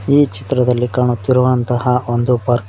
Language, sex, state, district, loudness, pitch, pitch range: Kannada, male, Karnataka, Koppal, -15 LUFS, 125 Hz, 120-125 Hz